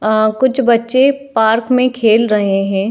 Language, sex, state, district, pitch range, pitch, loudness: Hindi, female, Bihar, Saharsa, 215-255 Hz, 225 Hz, -13 LUFS